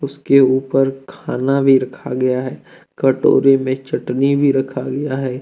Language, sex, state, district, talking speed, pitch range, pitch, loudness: Hindi, male, Jharkhand, Deoghar, 155 wpm, 130-135 Hz, 135 Hz, -16 LUFS